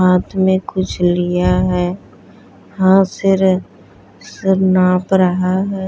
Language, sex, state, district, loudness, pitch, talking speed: Hindi, female, Bihar, Vaishali, -15 LUFS, 185 Hz, 90 wpm